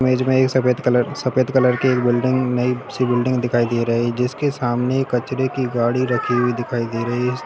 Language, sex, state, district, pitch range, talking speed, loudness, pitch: Hindi, male, Bihar, Sitamarhi, 120-130 Hz, 225 wpm, -19 LUFS, 125 Hz